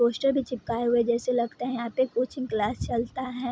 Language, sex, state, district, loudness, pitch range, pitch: Hindi, female, Bihar, Vaishali, -27 LUFS, 235-255 Hz, 240 Hz